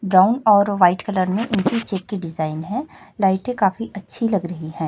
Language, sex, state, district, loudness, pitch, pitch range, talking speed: Hindi, female, Chhattisgarh, Raipur, -20 LUFS, 195 Hz, 185-225 Hz, 195 wpm